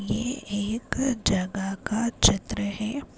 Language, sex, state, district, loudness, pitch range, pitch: Hindi, female, Uttar Pradesh, Gorakhpur, -26 LUFS, 200-235 Hz, 215 Hz